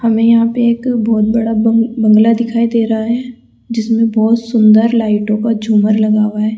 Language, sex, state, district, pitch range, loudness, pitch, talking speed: Hindi, female, Rajasthan, Jaipur, 215-230 Hz, -12 LUFS, 225 Hz, 180 wpm